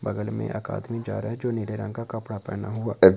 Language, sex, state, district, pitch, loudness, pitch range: Hindi, male, Bihar, Araria, 110 Hz, -29 LUFS, 105-115 Hz